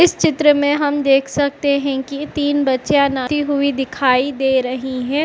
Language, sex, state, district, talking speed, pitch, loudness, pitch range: Hindi, female, Uttar Pradesh, Etah, 195 wpm, 280 Hz, -17 LUFS, 265-290 Hz